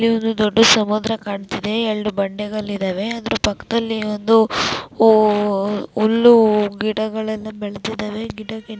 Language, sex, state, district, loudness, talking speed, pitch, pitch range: Kannada, female, Karnataka, Dakshina Kannada, -18 LUFS, 110 wpm, 215 Hz, 210-225 Hz